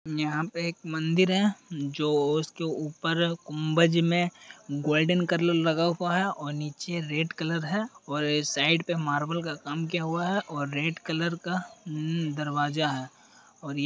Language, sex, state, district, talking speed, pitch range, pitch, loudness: Hindi, male, Uttar Pradesh, Deoria, 175 wpm, 150-170 Hz, 165 Hz, -28 LUFS